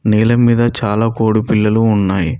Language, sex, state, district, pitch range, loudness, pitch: Telugu, male, Telangana, Mahabubabad, 105-115 Hz, -13 LUFS, 110 Hz